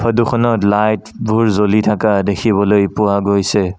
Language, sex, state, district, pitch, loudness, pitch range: Assamese, male, Assam, Sonitpur, 105 Hz, -14 LUFS, 100-110 Hz